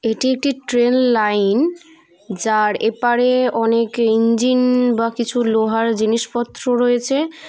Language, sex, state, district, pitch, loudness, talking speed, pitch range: Bengali, female, West Bengal, Purulia, 240 Hz, -17 LUFS, 105 wpm, 225-250 Hz